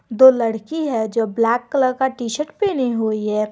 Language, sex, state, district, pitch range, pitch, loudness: Hindi, female, Jharkhand, Garhwa, 225-265 Hz, 235 Hz, -19 LUFS